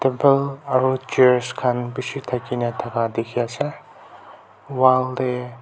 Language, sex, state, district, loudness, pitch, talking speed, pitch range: Nagamese, male, Nagaland, Kohima, -21 LUFS, 125 Hz, 115 wpm, 120-130 Hz